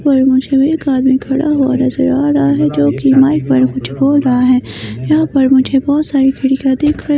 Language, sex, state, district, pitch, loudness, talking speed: Hindi, female, Himachal Pradesh, Shimla, 265 Hz, -12 LUFS, 225 wpm